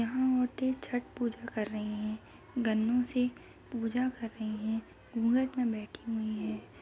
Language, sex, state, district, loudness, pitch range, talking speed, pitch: Hindi, female, Bihar, Jamui, -33 LUFS, 220-250 Hz, 165 wpm, 230 Hz